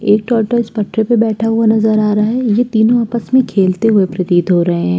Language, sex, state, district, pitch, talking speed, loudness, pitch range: Hindi, female, Uttar Pradesh, Jyotiba Phule Nagar, 220 Hz, 250 wpm, -13 LUFS, 195-230 Hz